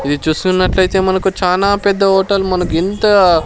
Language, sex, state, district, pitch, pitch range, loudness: Telugu, male, Andhra Pradesh, Sri Satya Sai, 190 Hz, 180-195 Hz, -13 LUFS